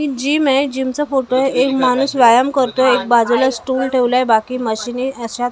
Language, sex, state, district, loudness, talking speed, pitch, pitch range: Marathi, female, Maharashtra, Mumbai Suburban, -15 LUFS, 215 wpm, 255 Hz, 245-265 Hz